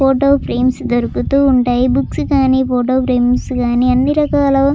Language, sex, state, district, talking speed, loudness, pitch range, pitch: Telugu, female, Andhra Pradesh, Chittoor, 140 wpm, -14 LUFS, 250-275 Hz, 260 Hz